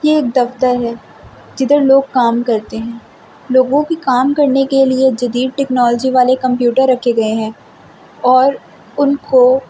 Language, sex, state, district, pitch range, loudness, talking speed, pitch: Hindi, female, Delhi, New Delhi, 245-270 Hz, -13 LUFS, 140 wpm, 255 Hz